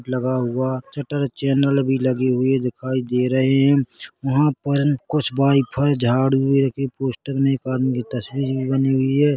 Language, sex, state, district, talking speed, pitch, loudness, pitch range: Hindi, male, Chhattisgarh, Korba, 180 wpm, 135 Hz, -20 LUFS, 130-140 Hz